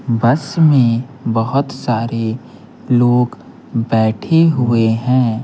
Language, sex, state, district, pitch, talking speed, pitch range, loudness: Hindi, male, Bihar, Patna, 120 Hz, 90 wpm, 115-135 Hz, -15 LUFS